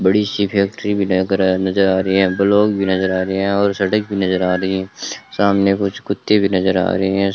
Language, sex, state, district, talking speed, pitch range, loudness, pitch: Hindi, male, Rajasthan, Bikaner, 260 wpm, 95-100 Hz, -17 LUFS, 95 Hz